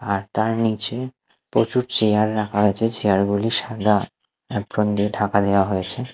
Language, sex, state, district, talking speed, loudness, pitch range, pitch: Bengali, male, Odisha, Nuapada, 145 wpm, -21 LUFS, 100-115 Hz, 105 Hz